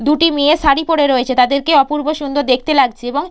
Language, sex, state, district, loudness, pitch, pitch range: Bengali, female, West Bengal, Purulia, -14 LUFS, 285 Hz, 270-305 Hz